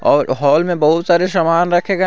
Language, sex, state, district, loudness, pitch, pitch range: Hindi, male, Jharkhand, Garhwa, -14 LUFS, 175 Hz, 165-175 Hz